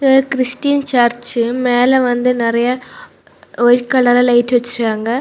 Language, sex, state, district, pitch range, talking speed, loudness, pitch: Tamil, female, Tamil Nadu, Kanyakumari, 240-255 Hz, 115 wpm, -14 LUFS, 245 Hz